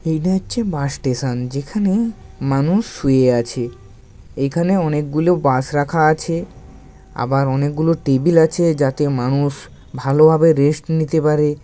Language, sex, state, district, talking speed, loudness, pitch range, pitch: Bengali, male, West Bengal, Paschim Medinipur, 130 wpm, -17 LUFS, 130-160 Hz, 145 Hz